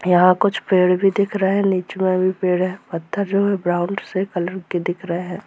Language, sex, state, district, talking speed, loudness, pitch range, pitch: Hindi, female, Bihar, Purnia, 230 wpm, -19 LUFS, 180-195 Hz, 185 Hz